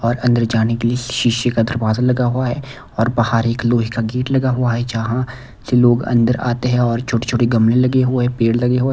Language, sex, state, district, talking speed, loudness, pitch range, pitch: Hindi, male, Bihar, Patna, 235 wpm, -17 LUFS, 115-125 Hz, 120 Hz